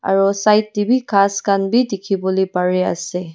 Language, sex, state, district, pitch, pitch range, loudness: Nagamese, female, Nagaland, Dimapur, 195 Hz, 185-210 Hz, -17 LUFS